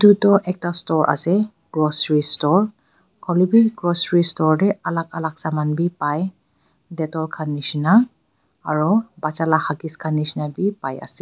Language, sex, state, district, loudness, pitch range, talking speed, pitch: Nagamese, female, Nagaland, Dimapur, -19 LUFS, 155-190 Hz, 155 wpm, 165 Hz